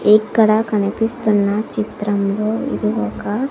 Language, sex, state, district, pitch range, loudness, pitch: Telugu, female, Andhra Pradesh, Sri Satya Sai, 200-220 Hz, -18 LUFS, 210 Hz